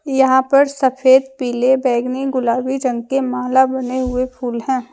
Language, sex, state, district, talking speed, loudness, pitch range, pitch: Hindi, female, Jharkhand, Deoghar, 160 wpm, -16 LUFS, 250-265 Hz, 260 Hz